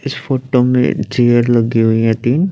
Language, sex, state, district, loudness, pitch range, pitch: Hindi, male, Chandigarh, Chandigarh, -14 LUFS, 115-130 Hz, 120 Hz